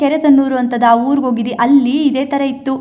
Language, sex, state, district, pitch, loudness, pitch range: Kannada, female, Karnataka, Chamarajanagar, 270 Hz, -13 LUFS, 250-280 Hz